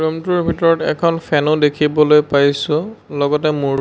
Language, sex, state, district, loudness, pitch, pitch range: Assamese, male, Assam, Sonitpur, -15 LUFS, 150 Hz, 145-165 Hz